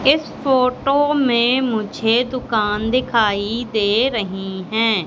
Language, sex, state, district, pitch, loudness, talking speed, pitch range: Hindi, female, Madhya Pradesh, Katni, 230 Hz, -18 LUFS, 105 wpm, 215-255 Hz